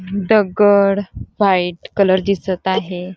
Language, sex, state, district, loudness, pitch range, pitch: Marathi, female, Karnataka, Belgaum, -16 LUFS, 185-200 Hz, 195 Hz